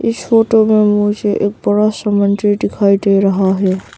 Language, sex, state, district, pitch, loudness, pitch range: Hindi, female, Arunachal Pradesh, Papum Pare, 205 Hz, -13 LUFS, 195-210 Hz